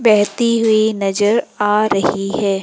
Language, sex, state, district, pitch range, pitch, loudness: Hindi, female, Madhya Pradesh, Umaria, 200-220 Hz, 210 Hz, -16 LUFS